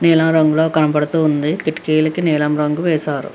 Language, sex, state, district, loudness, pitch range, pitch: Telugu, female, Andhra Pradesh, Krishna, -16 LUFS, 150-160 Hz, 155 Hz